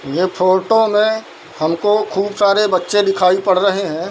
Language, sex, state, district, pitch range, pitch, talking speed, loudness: Hindi, male, Bihar, Darbhanga, 185-205 Hz, 195 Hz, 160 wpm, -15 LUFS